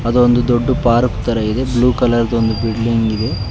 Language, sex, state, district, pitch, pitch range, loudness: Kannada, male, Karnataka, Bangalore, 115 Hz, 110-125 Hz, -15 LUFS